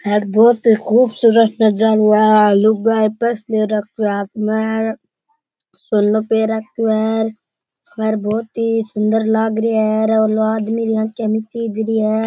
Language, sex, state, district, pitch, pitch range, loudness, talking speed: Rajasthani, male, Rajasthan, Churu, 220 Hz, 215-225 Hz, -16 LUFS, 105 wpm